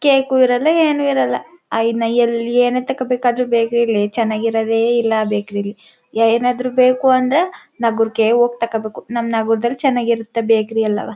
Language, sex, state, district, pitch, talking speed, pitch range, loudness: Kannada, female, Karnataka, Chamarajanagar, 235 Hz, 140 wpm, 225-255 Hz, -16 LUFS